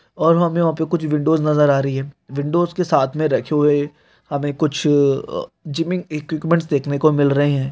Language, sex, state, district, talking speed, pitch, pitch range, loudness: Hindi, male, Rajasthan, Nagaur, 195 wpm, 150 Hz, 145-160 Hz, -18 LUFS